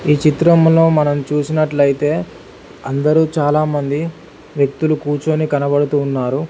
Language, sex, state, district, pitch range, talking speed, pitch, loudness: Telugu, male, Telangana, Hyderabad, 145-155 Hz, 85 wpm, 150 Hz, -15 LUFS